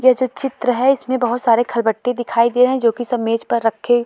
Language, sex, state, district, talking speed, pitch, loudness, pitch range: Hindi, female, Uttar Pradesh, Jalaun, 295 wpm, 245 Hz, -17 LUFS, 230-255 Hz